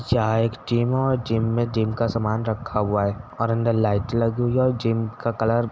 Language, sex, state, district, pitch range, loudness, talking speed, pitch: Hindi, male, Uttar Pradesh, Etah, 110-120 Hz, -23 LUFS, 230 wpm, 115 Hz